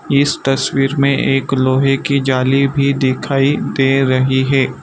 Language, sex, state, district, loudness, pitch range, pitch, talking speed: Hindi, male, Gujarat, Valsad, -14 LUFS, 130-140 Hz, 135 Hz, 150 wpm